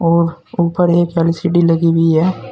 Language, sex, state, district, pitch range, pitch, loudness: Hindi, male, Uttar Pradesh, Saharanpur, 165-175 Hz, 170 Hz, -14 LUFS